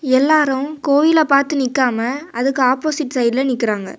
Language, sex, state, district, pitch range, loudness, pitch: Tamil, female, Tamil Nadu, Kanyakumari, 255-295 Hz, -16 LUFS, 270 Hz